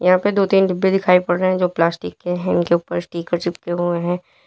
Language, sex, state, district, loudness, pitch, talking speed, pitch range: Hindi, female, Uttar Pradesh, Lalitpur, -19 LUFS, 175 Hz, 255 wpm, 175-185 Hz